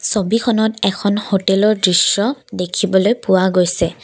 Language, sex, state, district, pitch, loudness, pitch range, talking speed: Assamese, female, Assam, Kamrup Metropolitan, 200 Hz, -15 LUFS, 185-215 Hz, 105 wpm